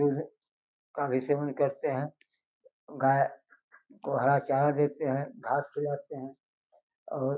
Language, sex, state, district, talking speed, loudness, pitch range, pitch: Hindi, male, Uttar Pradesh, Gorakhpur, 120 wpm, -30 LUFS, 135-145 Hz, 140 Hz